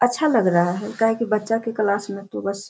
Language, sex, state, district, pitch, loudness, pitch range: Hindi, female, Bihar, Sitamarhi, 210 Hz, -21 LUFS, 200-230 Hz